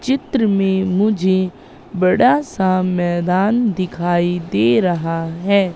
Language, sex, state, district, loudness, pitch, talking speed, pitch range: Hindi, female, Madhya Pradesh, Katni, -17 LUFS, 185 Hz, 105 wpm, 175-200 Hz